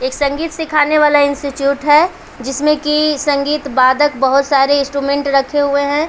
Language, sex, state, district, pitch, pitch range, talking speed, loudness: Hindi, female, Bihar, Patna, 285 Hz, 275-300 Hz, 170 wpm, -14 LUFS